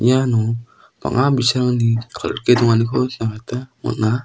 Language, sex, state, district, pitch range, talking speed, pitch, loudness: Garo, male, Meghalaya, South Garo Hills, 115-125 Hz, 115 wpm, 120 Hz, -18 LUFS